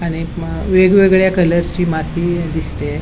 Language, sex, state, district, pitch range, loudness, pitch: Marathi, female, Goa, North and South Goa, 165-185 Hz, -15 LUFS, 175 Hz